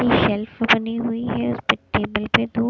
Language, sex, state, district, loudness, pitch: Hindi, female, Punjab, Kapurthala, -21 LUFS, 230 Hz